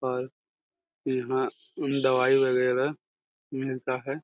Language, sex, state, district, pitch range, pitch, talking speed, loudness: Hindi, male, Jharkhand, Jamtara, 130-140 Hz, 130 Hz, 100 wpm, -27 LUFS